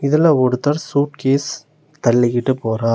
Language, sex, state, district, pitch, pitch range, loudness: Tamil, male, Tamil Nadu, Nilgiris, 135 Hz, 120-150 Hz, -17 LUFS